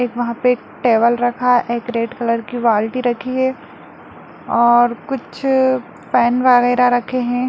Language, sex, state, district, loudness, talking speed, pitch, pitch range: Hindi, female, Bihar, Darbhanga, -16 LUFS, 160 wpm, 245 Hz, 235-250 Hz